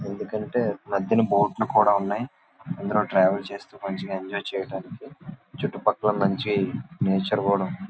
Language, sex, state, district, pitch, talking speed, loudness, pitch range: Telugu, male, Andhra Pradesh, Visakhapatnam, 100 Hz, 135 wpm, -25 LUFS, 95-105 Hz